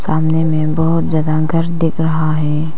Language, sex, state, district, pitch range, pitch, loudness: Hindi, female, Arunachal Pradesh, Papum Pare, 155-160 Hz, 160 Hz, -15 LUFS